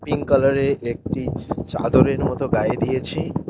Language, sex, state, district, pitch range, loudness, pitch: Bengali, male, West Bengal, Cooch Behar, 130-150 Hz, -20 LUFS, 140 Hz